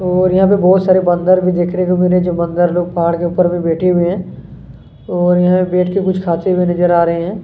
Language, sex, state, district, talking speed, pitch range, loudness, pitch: Hindi, male, Chhattisgarh, Kabirdham, 275 wpm, 175-185 Hz, -13 LUFS, 180 Hz